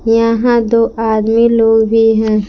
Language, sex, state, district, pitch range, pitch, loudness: Hindi, female, Jharkhand, Palamu, 220-230 Hz, 225 Hz, -11 LUFS